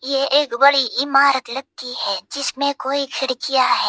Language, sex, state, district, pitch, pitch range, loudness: Hindi, female, Assam, Hailakandi, 270 Hz, 255-280 Hz, -18 LUFS